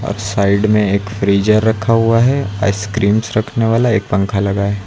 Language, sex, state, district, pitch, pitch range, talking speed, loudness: Hindi, male, Uttar Pradesh, Lucknow, 105 Hz, 100-115 Hz, 185 wpm, -15 LUFS